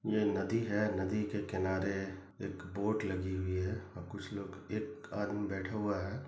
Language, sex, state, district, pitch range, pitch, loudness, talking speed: Hindi, male, Chhattisgarh, Bilaspur, 95-105 Hz, 100 Hz, -37 LUFS, 160 wpm